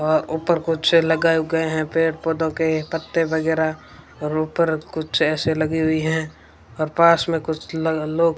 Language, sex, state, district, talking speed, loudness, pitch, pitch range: Hindi, female, Rajasthan, Bikaner, 180 wpm, -20 LUFS, 160 Hz, 155-165 Hz